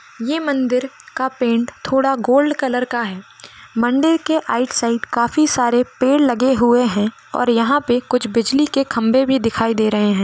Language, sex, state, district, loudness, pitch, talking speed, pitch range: Hindi, female, Goa, North and South Goa, -17 LUFS, 250 Hz, 170 wpm, 235-270 Hz